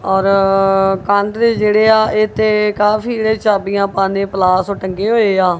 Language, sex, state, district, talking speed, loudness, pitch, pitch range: Punjabi, female, Punjab, Kapurthala, 140 wpm, -14 LUFS, 200 Hz, 195-215 Hz